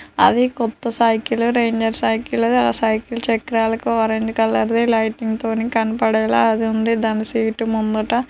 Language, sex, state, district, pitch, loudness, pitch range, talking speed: Telugu, female, Andhra Pradesh, Guntur, 225 Hz, -18 LUFS, 220-230 Hz, 130 wpm